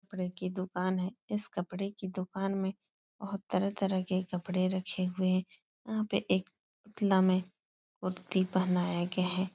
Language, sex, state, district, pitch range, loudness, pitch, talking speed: Hindi, female, Uttar Pradesh, Etah, 185-195 Hz, -33 LUFS, 185 Hz, 150 wpm